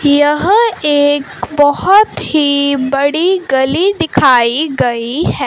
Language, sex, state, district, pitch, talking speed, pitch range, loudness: Hindi, female, Punjab, Fazilka, 290 Hz, 100 wpm, 275-330 Hz, -12 LUFS